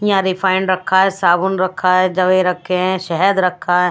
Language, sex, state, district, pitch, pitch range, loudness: Hindi, female, Bihar, West Champaran, 185 Hz, 180-190 Hz, -15 LUFS